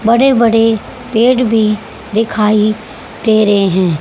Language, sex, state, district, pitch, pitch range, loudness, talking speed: Hindi, female, Haryana, Jhajjar, 220 Hz, 210-225 Hz, -12 LUFS, 120 wpm